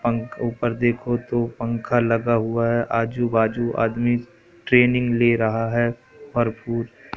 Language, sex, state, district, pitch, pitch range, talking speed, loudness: Hindi, male, Madhya Pradesh, Katni, 120 Hz, 115-120 Hz, 140 wpm, -22 LUFS